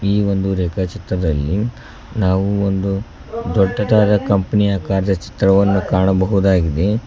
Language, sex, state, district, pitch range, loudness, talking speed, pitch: Kannada, male, Karnataka, Koppal, 95-105 Hz, -17 LUFS, 95 wpm, 95 Hz